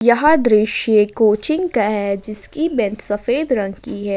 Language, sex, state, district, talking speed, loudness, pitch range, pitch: Hindi, female, Jharkhand, Ranchi, 160 wpm, -17 LUFS, 205-250 Hz, 215 Hz